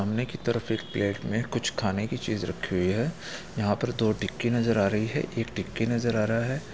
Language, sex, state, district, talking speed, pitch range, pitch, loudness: Hindi, male, Bihar, Gaya, 240 wpm, 105-120 Hz, 115 Hz, -28 LUFS